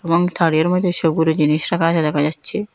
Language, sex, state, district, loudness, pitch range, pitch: Bengali, female, Assam, Hailakandi, -17 LUFS, 155-175 Hz, 165 Hz